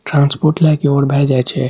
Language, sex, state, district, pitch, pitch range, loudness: Maithili, male, Bihar, Saharsa, 140 Hz, 140-155 Hz, -13 LUFS